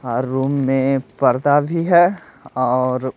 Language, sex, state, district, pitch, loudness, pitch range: Hindi, male, Odisha, Malkangiri, 135 Hz, -17 LUFS, 130-145 Hz